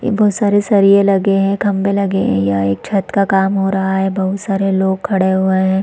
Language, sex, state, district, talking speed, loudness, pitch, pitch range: Hindi, female, Chhattisgarh, Rajnandgaon, 225 wpm, -14 LUFS, 195 Hz, 190-200 Hz